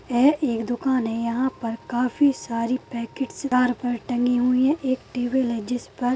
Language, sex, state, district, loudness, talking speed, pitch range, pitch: Hindi, female, Maharashtra, Aurangabad, -23 LUFS, 185 wpm, 240-260 Hz, 245 Hz